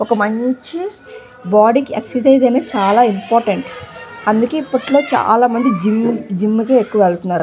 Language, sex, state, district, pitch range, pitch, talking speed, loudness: Telugu, female, Andhra Pradesh, Visakhapatnam, 210-260 Hz, 235 Hz, 120 wpm, -14 LUFS